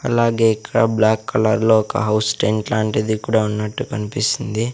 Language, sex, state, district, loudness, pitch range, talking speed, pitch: Telugu, male, Andhra Pradesh, Sri Satya Sai, -18 LUFS, 110-115 Hz, 150 wpm, 110 Hz